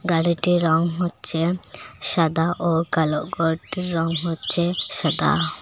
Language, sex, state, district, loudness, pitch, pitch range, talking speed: Bengali, female, Assam, Hailakandi, -21 LUFS, 170 Hz, 165-175 Hz, 105 wpm